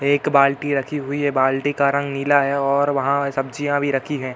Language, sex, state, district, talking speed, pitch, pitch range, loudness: Hindi, male, Uttar Pradesh, Hamirpur, 220 wpm, 140 Hz, 135-145 Hz, -19 LUFS